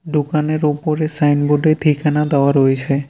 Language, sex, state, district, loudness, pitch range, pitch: Bengali, male, West Bengal, Cooch Behar, -16 LUFS, 145-155 Hz, 150 Hz